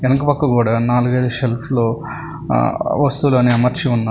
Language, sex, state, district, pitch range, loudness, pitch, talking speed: Telugu, male, Telangana, Hyderabad, 120-140 Hz, -16 LUFS, 125 Hz, 130 wpm